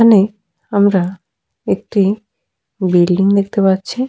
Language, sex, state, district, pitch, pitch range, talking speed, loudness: Bengali, female, Jharkhand, Sahebganj, 195 Hz, 185-210 Hz, 105 wpm, -15 LUFS